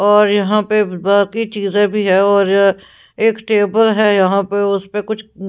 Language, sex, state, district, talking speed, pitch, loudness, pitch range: Hindi, female, Punjab, Pathankot, 175 wpm, 205 Hz, -14 LUFS, 200-215 Hz